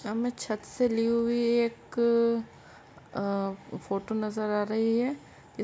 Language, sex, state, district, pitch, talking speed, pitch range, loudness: Hindi, female, Uttar Pradesh, Etah, 225 Hz, 160 wpm, 210-235 Hz, -29 LUFS